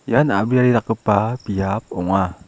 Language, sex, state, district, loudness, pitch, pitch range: Garo, male, Meghalaya, South Garo Hills, -19 LUFS, 100 Hz, 95-115 Hz